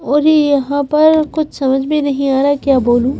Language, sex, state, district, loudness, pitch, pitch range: Hindi, female, Madhya Pradesh, Bhopal, -13 LUFS, 285 Hz, 270-300 Hz